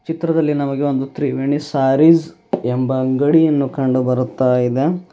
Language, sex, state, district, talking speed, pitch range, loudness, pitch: Kannada, male, Karnataka, Bidar, 115 wpm, 130-155 Hz, -17 LUFS, 140 Hz